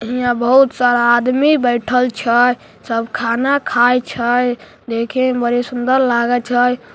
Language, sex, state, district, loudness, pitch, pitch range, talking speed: Maithili, female, Bihar, Samastipur, -15 LUFS, 245 Hz, 240-250 Hz, 140 wpm